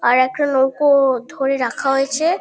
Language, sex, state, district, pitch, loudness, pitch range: Bengali, female, West Bengal, Kolkata, 270 Hz, -17 LUFS, 260-290 Hz